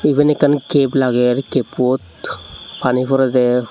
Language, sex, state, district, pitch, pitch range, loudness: Chakma, male, Tripura, Unakoti, 130 Hz, 125-140 Hz, -16 LUFS